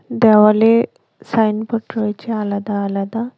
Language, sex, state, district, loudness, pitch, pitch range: Bengali, female, West Bengal, Cooch Behar, -16 LUFS, 215 Hz, 210-225 Hz